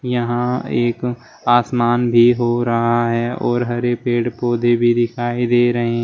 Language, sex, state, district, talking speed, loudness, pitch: Hindi, male, Uttar Pradesh, Shamli, 150 wpm, -17 LUFS, 120 Hz